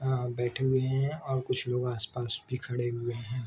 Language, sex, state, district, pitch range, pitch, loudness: Hindi, male, Jharkhand, Sahebganj, 120-130 Hz, 125 Hz, -31 LUFS